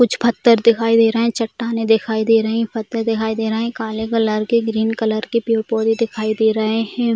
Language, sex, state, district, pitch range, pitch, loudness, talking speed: Hindi, female, Bihar, Jamui, 220-230 Hz, 225 Hz, -17 LUFS, 235 wpm